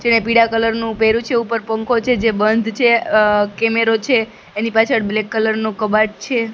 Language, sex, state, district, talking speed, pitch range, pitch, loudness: Gujarati, female, Gujarat, Gandhinagar, 200 wpm, 220-230 Hz, 225 Hz, -16 LUFS